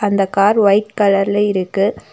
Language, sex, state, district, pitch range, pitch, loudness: Tamil, female, Tamil Nadu, Nilgiris, 195-205 Hz, 200 Hz, -15 LUFS